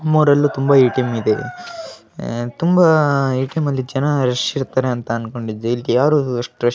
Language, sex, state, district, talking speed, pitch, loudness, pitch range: Kannada, male, Karnataka, Gulbarga, 180 wpm, 130 Hz, -17 LUFS, 120-150 Hz